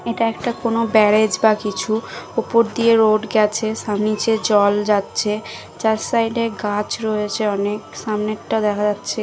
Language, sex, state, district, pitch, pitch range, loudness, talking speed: Bengali, female, Odisha, Khordha, 215 Hz, 210-225 Hz, -19 LUFS, 155 wpm